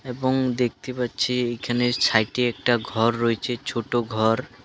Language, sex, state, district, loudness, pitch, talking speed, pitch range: Bengali, male, West Bengal, Alipurduar, -23 LUFS, 120 Hz, 130 wpm, 115-125 Hz